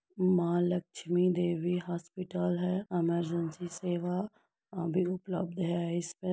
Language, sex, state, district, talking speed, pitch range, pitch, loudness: Hindi, female, Uttar Pradesh, Etah, 115 wpm, 175-185 Hz, 175 Hz, -32 LUFS